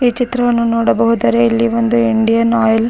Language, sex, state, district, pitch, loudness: Kannada, female, Karnataka, Raichur, 220 Hz, -13 LUFS